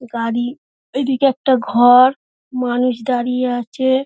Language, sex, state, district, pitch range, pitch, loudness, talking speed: Bengali, female, West Bengal, Dakshin Dinajpur, 245-260 Hz, 250 Hz, -16 LUFS, 105 wpm